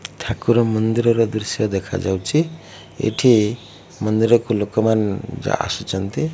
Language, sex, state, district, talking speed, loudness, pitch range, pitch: Odia, male, Odisha, Malkangiri, 85 wpm, -19 LUFS, 105-120 Hz, 110 Hz